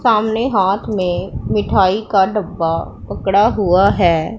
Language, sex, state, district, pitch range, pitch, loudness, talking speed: Hindi, female, Punjab, Pathankot, 175-210 Hz, 195 Hz, -16 LUFS, 125 wpm